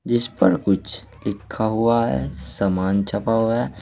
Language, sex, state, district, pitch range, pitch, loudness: Hindi, male, Uttar Pradesh, Saharanpur, 95-115 Hz, 100 Hz, -21 LUFS